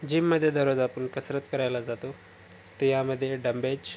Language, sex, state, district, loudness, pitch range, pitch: Marathi, male, Maharashtra, Sindhudurg, -28 LUFS, 125-140 Hz, 135 Hz